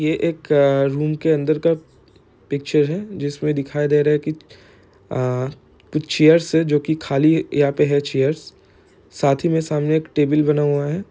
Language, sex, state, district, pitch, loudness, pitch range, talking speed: Hindi, male, Bihar, East Champaran, 150 Hz, -19 LUFS, 145-155 Hz, 175 wpm